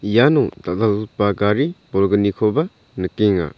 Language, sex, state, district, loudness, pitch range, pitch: Garo, male, Meghalaya, South Garo Hills, -19 LUFS, 100-110 Hz, 105 Hz